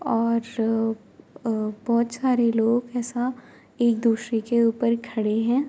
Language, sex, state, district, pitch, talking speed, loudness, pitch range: Hindi, female, Uttar Pradesh, Varanasi, 235 Hz, 125 wpm, -24 LUFS, 225-240 Hz